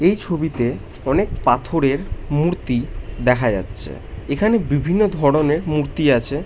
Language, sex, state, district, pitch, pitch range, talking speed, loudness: Bengali, male, West Bengal, North 24 Parganas, 140 Hz, 120-160 Hz, 120 wpm, -19 LUFS